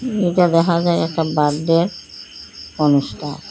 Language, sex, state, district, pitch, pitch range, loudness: Bengali, female, Assam, Hailakandi, 160 Hz, 140-170 Hz, -17 LUFS